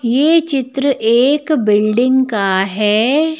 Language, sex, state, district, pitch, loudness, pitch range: Hindi, female, Madhya Pradesh, Bhopal, 255 Hz, -14 LUFS, 215-285 Hz